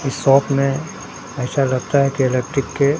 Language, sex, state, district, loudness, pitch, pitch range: Hindi, male, Bihar, Katihar, -18 LUFS, 135 Hz, 135-140 Hz